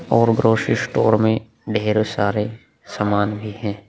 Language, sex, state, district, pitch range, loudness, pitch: Hindi, male, Bihar, Vaishali, 105-110 Hz, -19 LUFS, 110 Hz